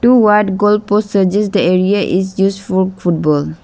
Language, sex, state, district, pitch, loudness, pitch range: English, female, Arunachal Pradesh, Lower Dibang Valley, 195 Hz, -13 LUFS, 185-210 Hz